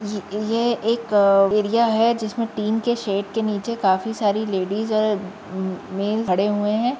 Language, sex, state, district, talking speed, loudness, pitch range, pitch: Hindi, female, Uttar Pradesh, Jyotiba Phule Nagar, 165 wpm, -21 LUFS, 200-225 Hz, 210 Hz